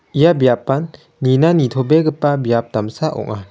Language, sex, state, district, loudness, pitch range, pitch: Garo, male, Meghalaya, West Garo Hills, -16 LUFS, 120-155 Hz, 135 Hz